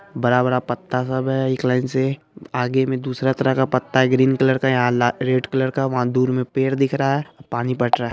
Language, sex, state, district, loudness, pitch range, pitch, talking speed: Hindi, male, Bihar, Araria, -20 LUFS, 125-135 Hz, 130 Hz, 245 wpm